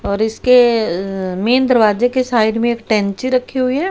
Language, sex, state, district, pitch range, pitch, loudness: Hindi, female, Haryana, Rohtak, 215-255 Hz, 235 Hz, -15 LUFS